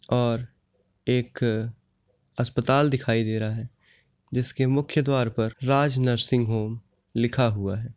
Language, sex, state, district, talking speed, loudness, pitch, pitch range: Hindi, male, Uttar Pradesh, Ghazipur, 130 wpm, -25 LUFS, 120 Hz, 110-130 Hz